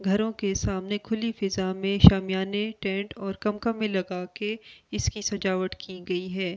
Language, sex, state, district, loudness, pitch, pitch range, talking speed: Hindi, female, Delhi, New Delhi, -27 LUFS, 195 Hz, 190-210 Hz, 155 wpm